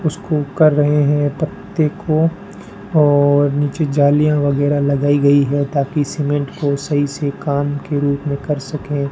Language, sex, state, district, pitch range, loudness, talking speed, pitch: Hindi, male, Rajasthan, Bikaner, 145-150 Hz, -16 LUFS, 160 wpm, 145 Hz